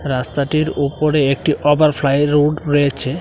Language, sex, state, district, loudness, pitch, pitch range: Bengali, male, Tripura, Dhalai, -16 LUFS, 145 Hz, 140-150 Hz